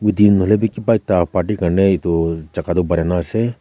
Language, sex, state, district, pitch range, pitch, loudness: Nagamese, male, Nagaland, Kohima, 85-105 Hz, 95 Hz, -17 LUFS